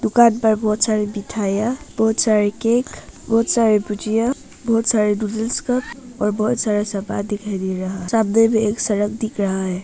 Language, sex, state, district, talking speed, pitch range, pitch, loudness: Hindi, female, Arunachal Pradesh, Papum Pare, 185 wpm, 205-230 Hz, 215 Hz, -19 LUFS